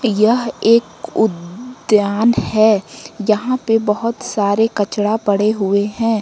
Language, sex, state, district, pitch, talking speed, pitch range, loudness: Hindi, female, Jharkhand, Ranchi, 215 Hz, 115 wpm, 205-230 Hz, -16 LUFS